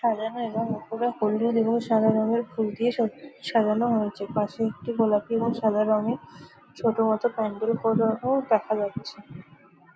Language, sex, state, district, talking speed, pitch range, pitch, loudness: Bengali, female, West Bengal, Jalpaiguri, 145 wpm, 215-230 Hz, 225 Hz, -25 LUFS